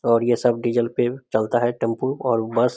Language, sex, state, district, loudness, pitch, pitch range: Hindi, male, Bihar, Samastipur, -21 LUFS, 120 Hz, 115-120 Hz